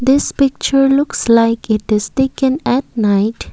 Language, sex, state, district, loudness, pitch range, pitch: English, female, Assam, Kamrup Metropolitan, -14 LUFS, 220-270 Hz, 255 Hz